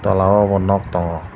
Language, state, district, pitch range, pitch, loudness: Kokborok, Tripura, Dhalai, 90-100 Hz, 95 Hz, -17 LUFS